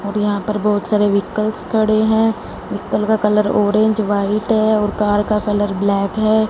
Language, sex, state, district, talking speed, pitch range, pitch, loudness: Hindi, female, Punjab, Fazilka, 185 wpm, 205-215 Hz, 210 Hz, -17 LUFS